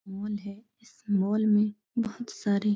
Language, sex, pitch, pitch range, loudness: Hindi, female, 210 Hz, 205-220 Hz, -29 LUFS